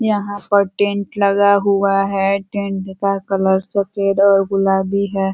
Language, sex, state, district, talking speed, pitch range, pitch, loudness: Hindi, female, Uttar Pradesh, Ghazipur, 145 wpm, 195-200 Hz, 200 Hz, -17 LUFS